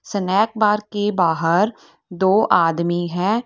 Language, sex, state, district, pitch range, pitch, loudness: Hindi, female, Uttar Pradesh, Lalitpur, 175-210 Hz, 200 Hz, -18 LUFS